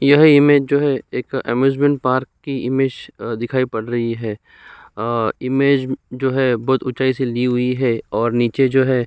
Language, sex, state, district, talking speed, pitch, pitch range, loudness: Hindi, male, Uttar Pradesh, Jyotiba Phule Nagar, 185 wpm, 130 Hz, 120-135 Hz, -18 LUFS